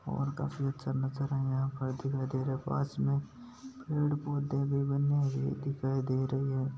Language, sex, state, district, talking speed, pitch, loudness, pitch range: Marwari, male, Rajasthan, Nagaur, 170 wpm, 135 Hz, -33 LUFS, 130-140 Hz